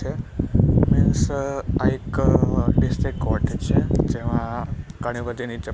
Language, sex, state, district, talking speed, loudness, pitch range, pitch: Gujarati, male, Gujarat, Gandhinagar, 115 wpm, -22 LUFS, 105-130 Hz, 120 Hz